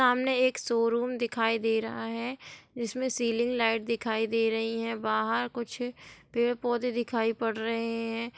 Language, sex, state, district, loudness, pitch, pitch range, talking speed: Hindi, female, Bihar, Gopalganj, -29 LUFS, 230 Hz, 225-240 Hz, 150 wpm